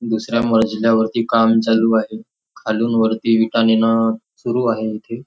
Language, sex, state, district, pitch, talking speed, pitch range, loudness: Marathi, male, Maharashtra, Nagpur, 115 Hz, 135 wpm, 110-115 Hz, -17 LUFS